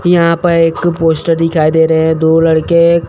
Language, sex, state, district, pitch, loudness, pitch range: Hindi, male, Chandigarh, Chandigarh, 165 Hz, -11 LUFS, 160-170 Hz